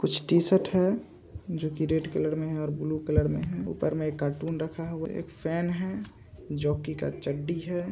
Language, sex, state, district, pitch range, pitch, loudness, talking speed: Hindi, male, Andhra Pradesh, Visakhapatnam, 150-170 Hz, 155 Hz, -29 LUFS, 205 wpm